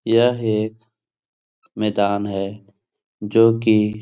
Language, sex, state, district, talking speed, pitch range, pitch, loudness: Hindi, male, Bihar, Supaul, 105 wpm, 100-115 Hz, 110 Hz, -19 LUFS